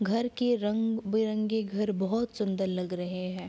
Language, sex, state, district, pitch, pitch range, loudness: Hindi, female, Bihar, Araria, 210 Hz, 190-225 Hz, -30 LUFS